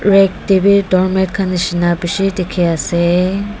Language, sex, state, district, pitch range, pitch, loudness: Nagamese, female, Nagaland, Dimapur, 175-195 Hz, 185 Hz, -14 LUFS